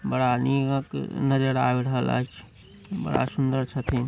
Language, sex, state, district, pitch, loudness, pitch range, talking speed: Maithili, male, Bihar, Samastipur, 130 Hz, -25 LUFS, 125-135 Hz, 130 wpm